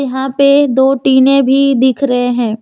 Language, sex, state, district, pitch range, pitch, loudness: Hindi, female, Jharkhand, Deoghar, 260-275 Hz, 265 Hz, -11 LUFS